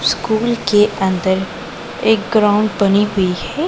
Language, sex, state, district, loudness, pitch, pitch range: Hindi, female, Punjab, Pathankot, -16 LUFS, 210 Hz, 190-220 Hz